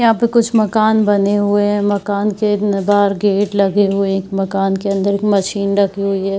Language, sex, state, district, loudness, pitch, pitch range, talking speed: Hindi, female, Bihar, Saharsa, -15 LUFS, 200 Hz, 195-205 Hz, 225 wpm